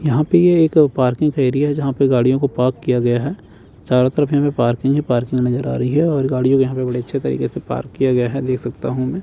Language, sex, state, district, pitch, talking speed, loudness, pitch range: Hindi, male, Chandigarh, Chandigarh, 130 Hz, 265 wpm, -17 LUFS, 125-145 Hz